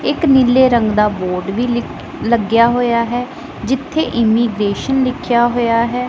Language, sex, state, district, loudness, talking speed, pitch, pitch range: Punjabi, female, Punjab, Pathankot, -15 LUFS, 150 wpm, 240 Hz, 230-255 Hz